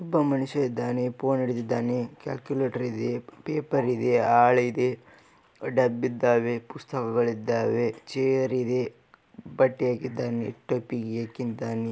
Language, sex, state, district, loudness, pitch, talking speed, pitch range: Kannada, male, Karnataka, Raichur, -26 LUFS, 125 Hz, 100 wpm, 120-130 Hz